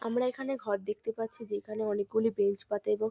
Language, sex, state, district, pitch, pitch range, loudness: Bengali, female, West Bengal, North 24 Parganas, 215 Hz, 205-225 Hz, -33 LUFS